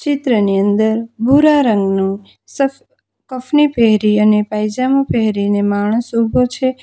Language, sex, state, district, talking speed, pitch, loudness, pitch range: Gujarati, female, Gujarat, Valsad, 125 wpm, 230 Hz, -14 LUFS, 210-260 Hz